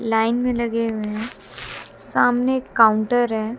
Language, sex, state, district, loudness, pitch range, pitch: Hindi, female, Haryana, Jhajjar, -20 LUFS, 220-245 Hz, 230 Hz